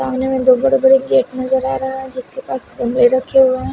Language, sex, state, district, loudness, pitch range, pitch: Hindi, female, Himachal Pradesh, Shimla, -15 LUFS, 255-265 Hz, 260 Hz